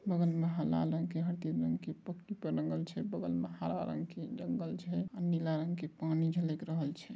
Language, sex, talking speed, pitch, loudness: Angika, male, 220 wpm, 160 Hz, -36 LUFS